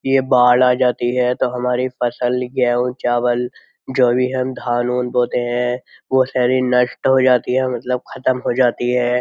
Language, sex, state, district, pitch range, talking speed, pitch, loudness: Hindi, male, Uttar Pradesh, Jyotiba Phule Nagar, 125-130 Hz, 175 wpm, 125 Hz, -17 LUFS